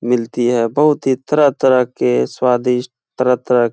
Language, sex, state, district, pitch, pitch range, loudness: Hindi, male, Uttar Pradesh, Etah, 125 Hz, 120-130 Hz, -15 LUFS